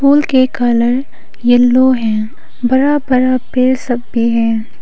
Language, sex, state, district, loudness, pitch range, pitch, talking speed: Hindi, female, Arunachal Pradesh, Papum Pare, -13 LUFS, 235-260 Hz, 250 Hz, 135 wpm